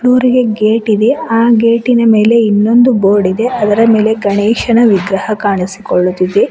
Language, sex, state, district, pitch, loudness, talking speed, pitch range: Kannada, female, Karnataka, Bidar, 220 Hz, -10 LUFS, 140 wpm, 205-235 Hz